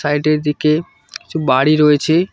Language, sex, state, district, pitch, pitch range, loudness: Bengali, male, West Bengal, Cooch Behar, 150 Hz, 150-155 Hz, -15 LUFS